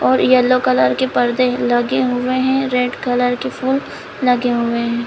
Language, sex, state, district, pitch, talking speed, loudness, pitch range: Hindi, female, Chhattisgarh, Bilaspur, 245 Hz, 190 wpm, -16 LUFS, 235-255 Hz